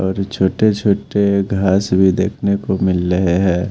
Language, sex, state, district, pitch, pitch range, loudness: Hindi, male, Haryana, Jhajjar, 95 Hz, 95-100 Hz, -16 LUFS